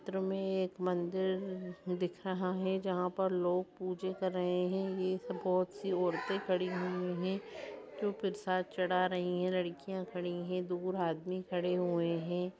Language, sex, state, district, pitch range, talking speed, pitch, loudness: Hindi, female, Bihar, Darbhanga, 180-190 Hz, 160 wpm, 185 Hz, -36 LUFS